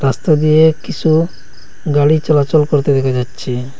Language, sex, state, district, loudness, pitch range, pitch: Bengali, male, Assam, Hailakandi, -14 LUFS, 135-155 Hz, 145 Hz